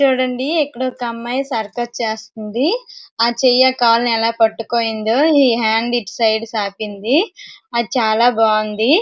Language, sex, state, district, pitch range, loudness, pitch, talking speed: Telugu, female, Andhra Pradesh, Srikakulam, 225-265 Hz, -17 LUFS, 235 Hz, 135 wpm